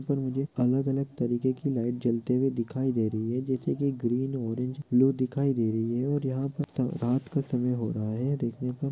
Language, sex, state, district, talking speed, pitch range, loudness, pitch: Hindi, male, Andhra Pradesh, Chittoor, 235 wpm, 120-135 Hz, -29 LUFS, 130 Hz